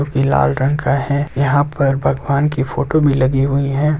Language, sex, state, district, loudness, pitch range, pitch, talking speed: Hindi, male, Bihar, Begusarai, -16 LUFS, 135-145 Hz, 140 Hz, 225 wpm